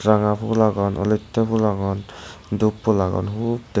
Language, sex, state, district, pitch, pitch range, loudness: Chakma, male, Tripura, West Tripura, 105 Hz, 100-110 Hz, -21 LUFS